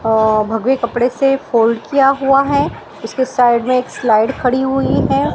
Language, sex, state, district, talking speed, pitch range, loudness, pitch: Hindi, female, Maharashtra, Mumbai Suburban, 180 wpm, 225-270 Hz, -14 LUFS, 250 Hz